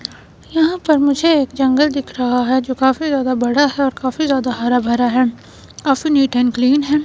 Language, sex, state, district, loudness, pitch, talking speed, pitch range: Hindi, female, Himachal Pradesh, Shimla, -16 LUFS, 265 Hz, 205 wpm, 250-290 Hz